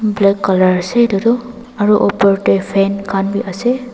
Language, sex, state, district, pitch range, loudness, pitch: Nagamese, female, Nagaland, Dimapur, 195-235 Hz, -14 LUFS, 200 Hz